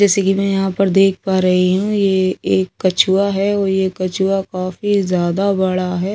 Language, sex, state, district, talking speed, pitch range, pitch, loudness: Hindi, female, Delhi, New Delhi, 205 wpm, 185-195 Hz, 190 Hz, -16 LUFS